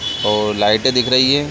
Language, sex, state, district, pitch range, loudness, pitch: Hindi, male, Chhattisgarh, Sarguja, 105-130 Hz, -15 LUFS, 115 Hz